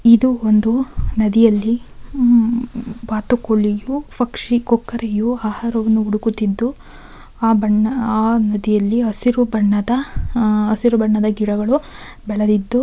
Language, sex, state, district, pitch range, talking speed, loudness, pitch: Kannada, female, Karnataka, Mysore, 215-240 Hz, 90 wpm, -17 LUFS, 225 Hz